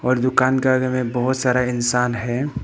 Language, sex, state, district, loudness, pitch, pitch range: Hindi, male, Arunachal Pradesh, Papum Pare, -19 LUFS, 125 Hz, 125-130 Hz